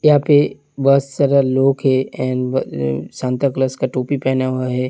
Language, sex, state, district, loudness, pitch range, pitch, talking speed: Hindi, male, Uttar Pradesh, Hamirpur, -17 LUFS, 130-140 Hz, 130 Hz, 185 wpm